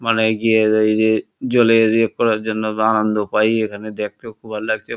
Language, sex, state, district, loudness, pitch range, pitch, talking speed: Bengali, male, West Bengal, Kolkata, -17 LUFS, 110-115 Hz, 110 Hz, 180 wpm